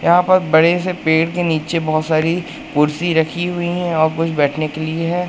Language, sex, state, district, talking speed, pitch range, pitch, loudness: Hindi, male, Madhya Pradesh, Katni, 215 wpm, 155-175 Hz, 165 Hz, -17 LUFS